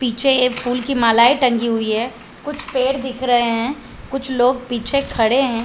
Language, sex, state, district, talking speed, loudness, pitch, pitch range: Hindi, female, Chhattisgarh, Bilaspur, 180 wpm, -17 LUFS, 250 Hz, 235-265 Hz